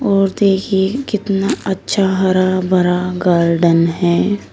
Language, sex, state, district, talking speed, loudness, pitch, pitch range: Hindi, female, Uttar Pradesh, Shamli, 105 wpm, -15 LUFS, 190 Hz, 180-195 Hz